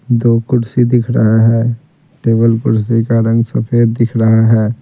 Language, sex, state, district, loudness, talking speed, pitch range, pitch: Hindi, male, Bihar, Patna, -12 LUFS, 160 wpm, 115-120 Hz, 115 Hz